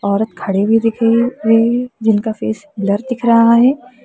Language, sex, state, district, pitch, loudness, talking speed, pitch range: Hindi, female, Uttar Pradesh, Lalitpur, 225 Hz, -14 LUFS, 190 wpm, 215-240 Hz